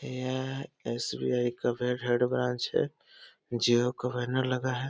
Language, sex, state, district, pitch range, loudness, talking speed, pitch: Hindi, male, Uttar Pradesh, Deoria, 120-130 Hz, -30 LUFS, 135 wpm, 125 Hz